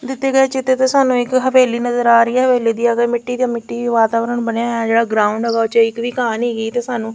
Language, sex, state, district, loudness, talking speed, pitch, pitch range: Punjabi, female, Punjab, Kapurthala, -16 LUFS, 295 wpm, 240 Hz, 230-250 Hz